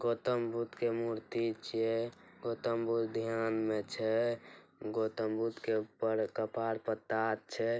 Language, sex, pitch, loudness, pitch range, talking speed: Angika, male, 115 Hz, -35 LUFS, 110-115 Hz, 140 wpm